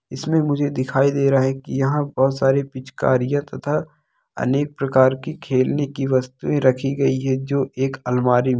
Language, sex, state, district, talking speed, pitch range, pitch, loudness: Hindi, male, Bihar, Purnia, 175 wpm, 130-140 Hz, 135 Hz, -20 LUFS